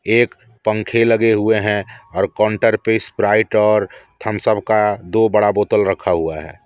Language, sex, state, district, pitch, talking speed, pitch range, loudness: Hindi, male, Jharkhand, Deoghar, 105 Hz, 160 wpm, 105-110 Hz, -17 LUFS